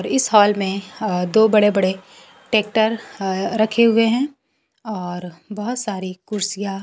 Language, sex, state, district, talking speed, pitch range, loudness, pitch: Hindi, female, Bihar, Kaimur, 125 wpm, 195-225 Hz, -19 LUFS, 210 Hz